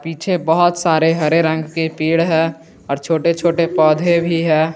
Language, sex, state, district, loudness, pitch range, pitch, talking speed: Hindi, male, Jharkhand, Garhwa, -16 LUFS, 160-170 Hz, 165 Hz, 175 wpm